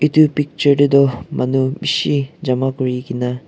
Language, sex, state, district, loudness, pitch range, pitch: Nagamese, male, Nagaland, Kohima, -17 LUFS, 125-145 Hz, 135 Hz